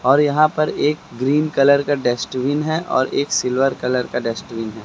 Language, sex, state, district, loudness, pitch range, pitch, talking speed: Hindi, male, Uttar Pradesh, Lucknow, -19 LUFS, 125-145 Hz, 135 Hz, 195 wpm